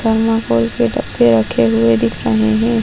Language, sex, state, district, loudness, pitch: Hindi, female, Maharashtra, Solapur, -14 LUFS, 115 Hz